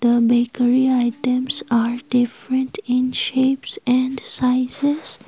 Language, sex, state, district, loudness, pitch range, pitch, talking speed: English, female, Assam, Kamrup Metropolitan, -18 LUFS, 245-260 Hz, 250 Hz, 100 wpm